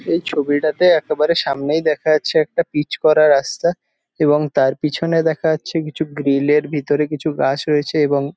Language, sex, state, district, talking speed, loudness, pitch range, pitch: Bengali, male, West Bengal, Jhargram, 165 wpm, -17 LUFS, 145-160 Hz, 150 Hz